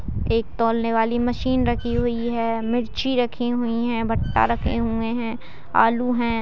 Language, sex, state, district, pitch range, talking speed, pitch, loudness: Hindi, female, Bihar, Jamui, 225-240 Hz, 160 wpm, 230 Hz, -22 LUFS